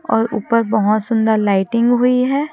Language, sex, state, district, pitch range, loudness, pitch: Hindi, female, Chhattisgarh, Raipur, 220-245 Hz, -16 LUFS, 225 Hz